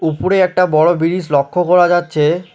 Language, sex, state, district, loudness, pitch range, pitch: Bengali, male, West Bengal, Alipurduar, -14 LUFS, 160-180 Hz, 175 Hz